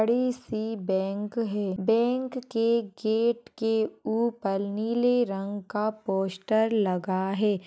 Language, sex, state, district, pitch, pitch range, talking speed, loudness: Hindi, female, Maharashtra, Nagpur, 220 Hz, 195-230 Hz, 115 wpm, -27 LUFS